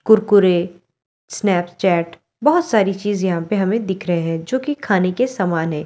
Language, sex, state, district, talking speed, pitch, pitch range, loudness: Hindi, female, Delhi, New Delhi, 175 wpm, 190 Hz, 170-215 Hz, -18 LUFS